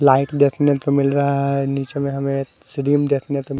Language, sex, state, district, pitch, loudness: Hindi, male, Haryana, Charkhi Dadri, 140 Hz, -19 LUFS